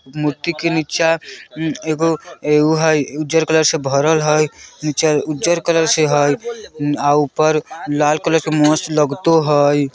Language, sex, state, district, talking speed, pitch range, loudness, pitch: Bajjika, male, Bihar, Vaishali, 145 wpm, 150-160 Hz, -16 LUFS, 155 Hz